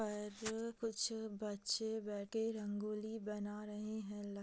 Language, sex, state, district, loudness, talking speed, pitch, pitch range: Hindi, female, Bihar, Purnia, -43 LUFS, 150 wpm, 210 Hz, 205-220 Hz